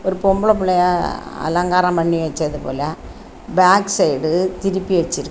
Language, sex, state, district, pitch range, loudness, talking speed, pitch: Tamil, female, Tamil Nadu, Kanyakumari, 165-190 Hz, -17 LUFS, 125 wpm, 180 Hz